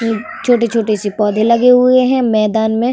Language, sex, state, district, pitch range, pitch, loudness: Hindi, female, Uttar Pradesh, Varanasi, 215-245 Hz, 230 Hz, -13 LUFS